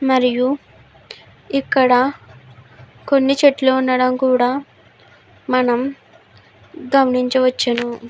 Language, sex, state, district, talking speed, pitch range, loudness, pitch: Telugu, female, Andhra Pradesh, Guntur, 60 wpm, 245-270 Hz, -17 LUFS, 255 Hz